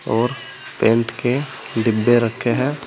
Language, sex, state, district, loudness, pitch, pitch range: Hindi, male, Uttar Pradesh, Saharanpur, -19 LUFS, 120 Hz, 115-130 Hz